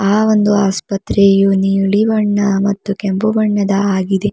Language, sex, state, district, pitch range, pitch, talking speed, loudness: Kannada, female, Karnataka, Bidar, 195-205 Hz, 200 Hz, 125 wpm, -14 LUFS